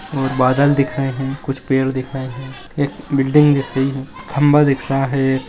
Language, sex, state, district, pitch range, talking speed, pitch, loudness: Magahi, male, Bihar, Jahanabad, 135-140 Hz, 210 wpm, 135 Hz, -17 LUFS